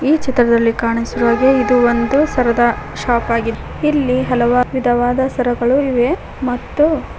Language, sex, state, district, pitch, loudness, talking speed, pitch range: Kannada, female, Karnataka, Koppal, 245 Hz, -15 LUFS, 135 wpm, 235-265 Hz